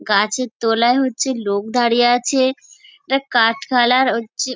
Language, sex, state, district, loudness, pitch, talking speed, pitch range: Bengali, female, West Bengal, Dakshin Dinajpur, -17 LUFS, 245 Hz, 130 wpm, 230-265 Hz